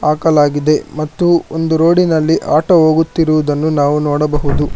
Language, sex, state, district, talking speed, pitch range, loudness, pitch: Kannada, male, Karnataka, Bangalore, 100 wpm, 150-160 Hz, -13 LUFS, 155 Hz